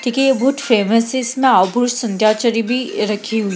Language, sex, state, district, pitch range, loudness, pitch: Hindi, female, Bihar, Gaya, 215-255 Hz, -16 LUFS, 235 Hz